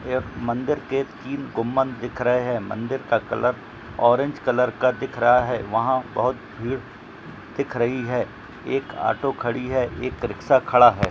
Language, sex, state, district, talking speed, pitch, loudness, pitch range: Hindi, male, Bihar, Gaya, 165 wpm, 125 Hz, -23 LUFS, 120-130 Hz